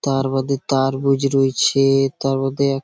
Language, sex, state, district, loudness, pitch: Bengali, male, West Bengal, Malda, -18 LUFS, 135 Hz